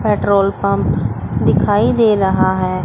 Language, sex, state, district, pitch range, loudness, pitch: Hindi, female, Chandigarh, Chandigarh, 185-210 Hz, -15 LUFS, 195 Hz